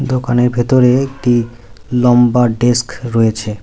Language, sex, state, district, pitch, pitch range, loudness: Bengali, male, West Bengal, Cooch Behar, 120 Hz, 115-125 Hz, -13 LUFS